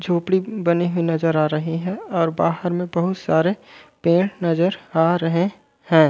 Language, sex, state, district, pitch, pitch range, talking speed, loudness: Chhattisgarhi, male, Chhattisgarh, Raigarh, 175 Hz, 165-185 Hz, 165 wpm, -20 LUFS